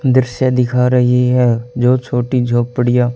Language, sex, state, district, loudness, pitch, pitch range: Hindi, male, Haryana, Charkhi Dadri, -14 LUFS, 125 Hz, 120-125 Hz